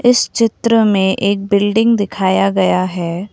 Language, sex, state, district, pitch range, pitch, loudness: Hindi, female, Assam, Kamrup Metropolitan, 190-225 Hz, 200 Hz, -14 LUFS